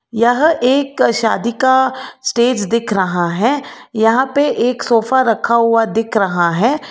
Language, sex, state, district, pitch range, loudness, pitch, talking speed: Hindi, female, Karnataka, Bangalore, 220-260 Hz, -15 LUFS, 235 Hz, 155 wpm